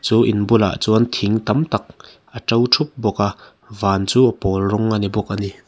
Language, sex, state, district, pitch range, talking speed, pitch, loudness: Mizo, male, Mizoram, Aizawl, 100-115 Hz, 230 wpm, 110 Hz, -18 LUFS